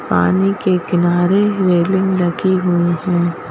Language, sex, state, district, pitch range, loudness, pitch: Hindi, female, Madhya Pradesh, Bhopal, 175-190 Hz, -15 LUFS, 180 Hz